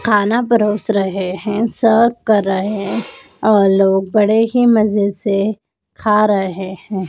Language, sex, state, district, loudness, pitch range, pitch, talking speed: Hindi, female, Madhya Pradesh, Dhar, -15 LUFS, 195-220 Hz, 210 Hz, 135 wpm